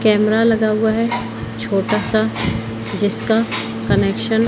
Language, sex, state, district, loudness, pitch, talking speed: Hindi, female, Madhya Pradesh, Umaria, -18 LUFS, 200 Hz, 120 wpm